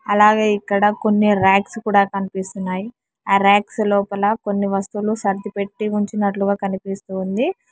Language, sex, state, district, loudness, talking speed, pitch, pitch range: Telugu, male, Telangana, Hyderabad, -19 LUFS, 110 wpm, 200 Hz, 195-210 Hz